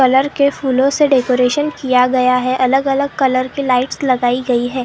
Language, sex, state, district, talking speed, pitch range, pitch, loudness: Hindi, female, Maharashtra, Gondia, 200 wpm, 250-275 Hz, 260 Hz, -15 LUFS